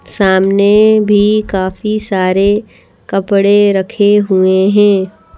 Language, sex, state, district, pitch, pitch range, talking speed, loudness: Hindi, female, Madhya Pradesh, Bhopal, 200 Hz, 190-210 Hz, 90 wpm, -11 LUFS